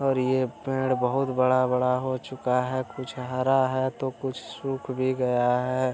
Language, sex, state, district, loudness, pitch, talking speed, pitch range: Hindi, male, Bihar, Araria, -26 LUFS, 130 Hz, 170 wpm, 125-130 Hz